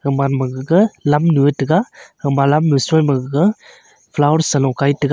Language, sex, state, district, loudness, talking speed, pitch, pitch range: Wancho, male, Arunachal Pradesh, Longding, -16 LUFS, 210 wpm, 145 Hz, 140-160 Hz